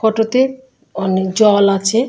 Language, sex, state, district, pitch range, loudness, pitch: Bengali, female, West Bengal, Malda, 195-245 Hz, -15 LUFS, 220 Hz